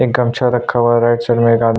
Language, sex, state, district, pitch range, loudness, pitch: Hindi, male, Chhattisgarh, Sukma, 115-125 Hz, -14 LUFS, 120 Hz